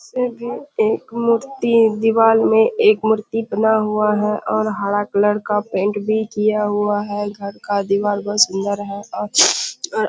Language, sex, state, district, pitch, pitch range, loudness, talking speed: Hindi, female, Bihar, Kishanganj, 215 Hz, 205-225 Hz, -18 LUFS, 165 wpm